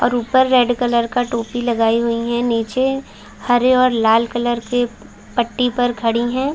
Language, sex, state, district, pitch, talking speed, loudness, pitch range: Hindi, female, Chhattisgarh, Balrampur, 240 Hz, 175 wpm, -17 LUFS, 235-250 Hz